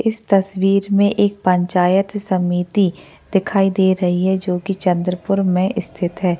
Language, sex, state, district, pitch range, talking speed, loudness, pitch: Hindi, female, Maharashtra, Chandrapur, 180-200 Hz, 150 wpm, -17 LUFS, 190 Hz